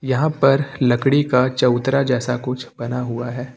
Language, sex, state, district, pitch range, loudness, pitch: Hindi, male, Uttar Pradesh, Lucknow, 125-135 Hz, -19 LUFS, 125 Hz